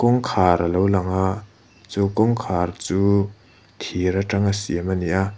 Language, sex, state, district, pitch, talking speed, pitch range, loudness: Mizo, male, Mizoram, Aizawl, 100 Hz, 155 wpm, 90-105 Hz, -21 LUFS